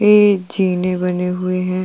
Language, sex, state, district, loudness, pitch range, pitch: Hindi, female, Uttar Pradesh, Jalaun, -16 LUFS, 180-190 Hz, 185 Hz